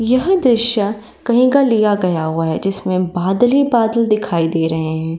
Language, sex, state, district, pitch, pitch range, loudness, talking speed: Hindi, female, Uttar Pradesh, Varanasi, 210 Hz, 170-240 Hz, -15 LUFS, 185 wpm